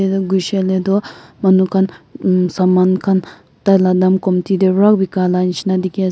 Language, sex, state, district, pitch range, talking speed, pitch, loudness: Nagamese, male, Nagaland, Kohima, 185-195 Hz, 185 wpm, 190 Hz, -15 LUFS